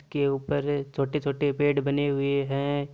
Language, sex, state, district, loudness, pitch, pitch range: Marwari, male, Rajasthan, Nagaur, -27 LUFS, 140 Hz, 140-145 Hz